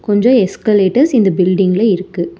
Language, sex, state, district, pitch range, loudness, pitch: Tamil, male, Tamil Nadu, Chennai, 185-225 Hz, -12 LUFS, 195 Hz